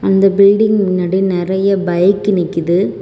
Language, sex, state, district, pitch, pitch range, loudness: Tamil, female, Tamil Nadu, Kanyakumari, 190 Hz, 180-200 Hz, -13 LUFS